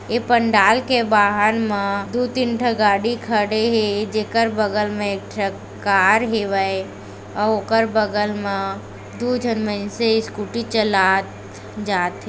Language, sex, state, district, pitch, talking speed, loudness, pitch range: Chhattisgarhi, female, Chhattisgarh, Raigarh, 210 Hz, 135 wpm, -19 LUFS, 200-225 Hz